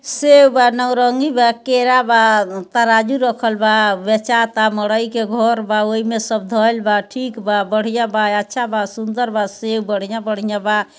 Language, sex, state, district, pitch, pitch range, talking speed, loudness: Bhojpuri, female, Bihar, East Champaran, 225 Hz, 215-240 Hz, 165 wpm, -16 LUFS